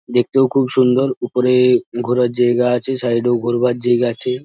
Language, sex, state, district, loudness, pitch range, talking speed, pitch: Bengali, male, West Bengal, Jhargram, -16 LUFS, 120-125 Hz, 150 wpm, 125 Hz